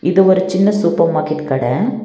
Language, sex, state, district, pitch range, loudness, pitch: Tamil, female, Tamil Nadu, Nilgiris, 155-195 Hz, -15 LUFS, 180 Hz